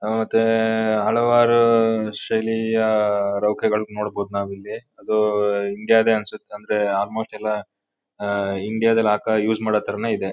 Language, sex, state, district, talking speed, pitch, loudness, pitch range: Kannada, male, Karnataka, Mysore, 145 wpm, 110 Hz, -21 LUFS, 105-110 Hz